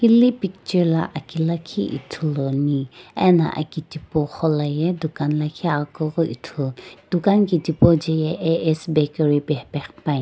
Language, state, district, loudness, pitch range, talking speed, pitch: Sumi, Nagaland, Dimapur, -21 LUFS, 145-170 Hz, 130 wpm, 160 Hz